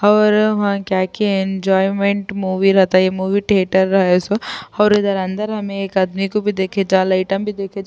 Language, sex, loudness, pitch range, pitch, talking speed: Urdu, female, -17 LUFS, 190-205 Hz, 195 Hz, 205 wpm